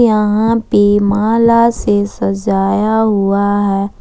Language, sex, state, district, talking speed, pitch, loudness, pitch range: Hindi, female, Jharkhand, Ranchi, 105 wpm, 205 Hz, -13 LUFS, 200-220 Hz